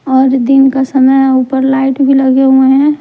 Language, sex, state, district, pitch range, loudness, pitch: Hindi, female, Bihar, Patna, 265-270 Hz, -9 LUFS, 265 Hz